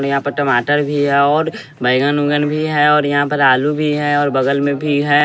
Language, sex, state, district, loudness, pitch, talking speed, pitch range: Hindi, male, Bihar, West Champaran, -15 LUFS, 145 Hz, 240 wpm, 140-150 Hz